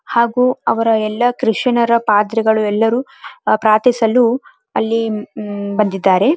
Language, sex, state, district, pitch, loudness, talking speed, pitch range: Kannada, female, Karnataka, Dharwad, 230 Hz, -15 LUFS, 95 wpm, 215-250 Hz